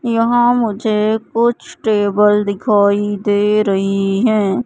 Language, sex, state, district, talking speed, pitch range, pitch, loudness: Hindi, female, Madhya Pradesh, Katni, 105 wpm, 200-225 Hz, 210 Hz, -15 LUFS